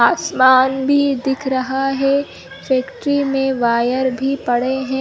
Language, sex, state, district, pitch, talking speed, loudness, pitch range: Hindi, female, Chhattisgarh, Bilaspur, 265 Hz, 130 wpm, -17 LUFS, 260-275 Hz